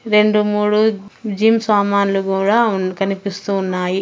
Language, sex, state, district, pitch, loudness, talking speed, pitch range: Telugu, female, Andhra Pradesh, Anantapur, 200 Hz, -16 LUFS, 120 wpm, 195-210 Hz